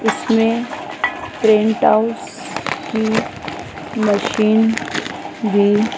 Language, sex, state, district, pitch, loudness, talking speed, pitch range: Hindi, female, Madhya Pradesh, Dhar, 220 Hz, -18 LUFS, 60 wpm, 215-225 Hz